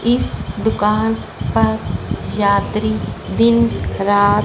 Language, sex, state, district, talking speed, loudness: Hindi, female, Punjab, Fazilka, 80 wpm, -17 LUFS